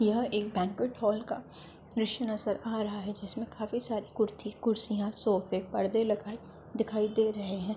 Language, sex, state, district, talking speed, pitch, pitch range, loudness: Hindi, female, Uttar Pradesh, Ghazipur, 175 wpm, 215 Hz, 205-225 Hz, -32 LUFS